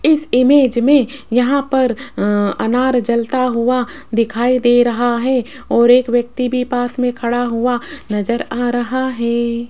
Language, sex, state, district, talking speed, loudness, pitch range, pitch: Hindi, female, Rajasthan, Jaipur, 150 wpm, -16 LUFS, 235-255 Hz, 245 Hz